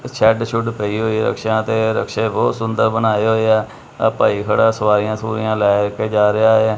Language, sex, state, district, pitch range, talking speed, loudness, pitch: Punjabi, male, Punjab, Kapurthala, 105-110 Hz, 205 wpm, -17 LUFS, 110 Hz